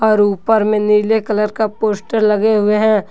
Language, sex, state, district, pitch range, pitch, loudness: Hindi, male, Jharkhand, Deoghar, 210-220 Hz, 215 Hz, -15 LUFS